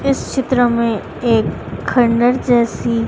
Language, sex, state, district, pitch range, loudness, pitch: Hindi, female, Madhya Pradesh, Dhar, 230-250 Hz, -16 LUFS, 240 Hz